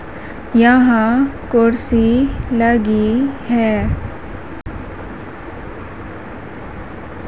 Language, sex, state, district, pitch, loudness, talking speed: Hindi, female, Madhya Pradesh, Umaria, 215 Hz, -15 LUFS, 35 wpm